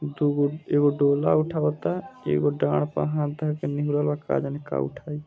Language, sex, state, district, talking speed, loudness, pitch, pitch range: Bhojpuri, male, Bihar, Gopalganj, 170 wpm, -25 LUFS, 145 Hz, 140-150 Hz